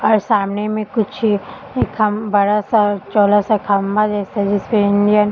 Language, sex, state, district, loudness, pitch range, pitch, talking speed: Hindi, female, Bihar, Sitamarhi, -16 LUFS, 205-215 Hz, 210 Hz, 170 wpm